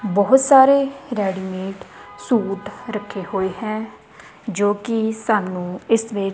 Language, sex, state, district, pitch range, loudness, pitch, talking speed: Punjabi, female, Punjab, Kapurthala, 195-225 Hz, -20 LUFS, 205 Hz, 125 wpm